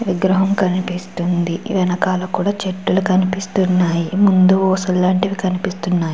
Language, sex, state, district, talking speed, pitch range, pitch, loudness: Telugu, female, Andhra Pradesh, Chittoor, 100 wpm, 180-190 Hz, 185 Hz, -17 LUFS